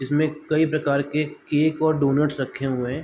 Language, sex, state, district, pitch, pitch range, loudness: Hindi, male, Bihar, East Champaran, 150 Hz, 140-155 Hz, -23 LUFS